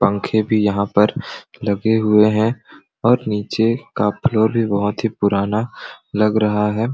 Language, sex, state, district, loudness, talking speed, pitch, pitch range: Sadri, male, Chhattisgarh, Jashpur, -18 LUFS, 155 wpm, 110 Hz, 105-110 Hz